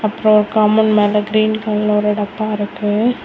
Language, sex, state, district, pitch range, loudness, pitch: Tamil, female, Tamil Nadu, Kanyakumari, 210-215 Hz, -15 LUFS, 210 Hz